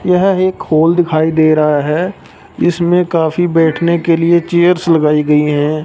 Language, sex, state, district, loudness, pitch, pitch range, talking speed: Hindi, male, Punjab, Fazilka, -12 LUFS, 165 Hz, 155-175 Hz, 165 wpm